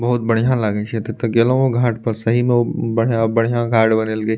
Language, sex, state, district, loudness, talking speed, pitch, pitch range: Maithili, male, Bihar, Madhepura, -17 LUFS, 220 wpm, 115 Hz, 110-120 Hz